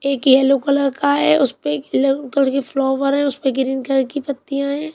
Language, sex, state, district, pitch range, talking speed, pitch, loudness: Hindi, female, Punjab, Kapurthala, 265-280 Hz, 180 wpm, 275 Hz, -18 LUFS